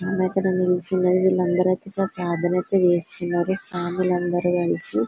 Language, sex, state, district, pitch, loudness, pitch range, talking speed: Telugu, female, Telangana, Karimnagar, 180 Hz, -22 LUFS, 175-185 Hz, 130 wpm